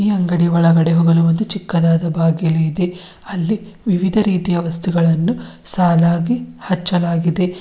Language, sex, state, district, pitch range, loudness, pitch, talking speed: Kannada, female, Karnataka, Bidar, 165-185 Hz, -16 LUFS, 175 Hz, 110 wpm